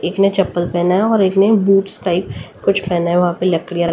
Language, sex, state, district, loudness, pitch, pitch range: Hindi, female, Delhi, New Delhi, -15 LUFS, 180 Hz, 175-195 Hz